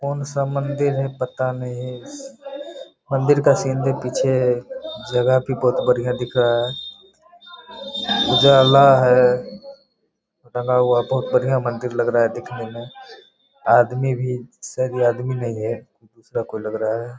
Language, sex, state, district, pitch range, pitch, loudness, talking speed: Hindi, male, Bihar, Begusarai, 125-140 Hz, 130 Hz, -19 LUFS, 135 wpm